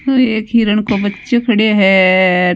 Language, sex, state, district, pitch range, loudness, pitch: Marwari, female, Rajasthan, Nagaur, 190-230 Hz, -12 LUFS, 215 Hz